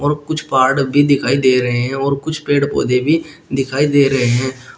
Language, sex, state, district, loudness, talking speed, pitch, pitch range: Hindi, male, Uttar Pradesh, Shamli, -15 LUFS, 200 wpm, 140 Hz, 130-145 Hz